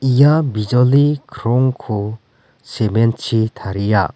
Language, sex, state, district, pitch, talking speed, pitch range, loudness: Garo, male, Meghalaya, West Garo Hills, 120 Hz, 85 wpm, 110-130 Hz, -16 LUFS